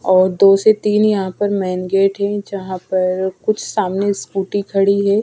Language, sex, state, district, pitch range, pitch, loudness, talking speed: Hindi, female, Bihar, Patna, 185-205 Hz, 195 Hz, -16 LUFS, 185 wpm